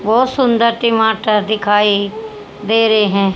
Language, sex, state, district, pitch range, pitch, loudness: Hindi, female, Haryana, Charkhi Dadri, 210-230 Hz, 220 Hz, -14 LUFS